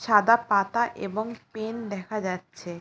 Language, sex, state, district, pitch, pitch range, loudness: Bengali, female, West Bengal, Jalpaiguri, 215 Hz, 200-230 Hz, -26 LUFS